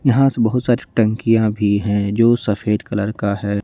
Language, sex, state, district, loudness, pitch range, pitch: Hindi, male, Jharkhand, Ranchi, -17 LUFS, 105-120 Hz, 110 Hz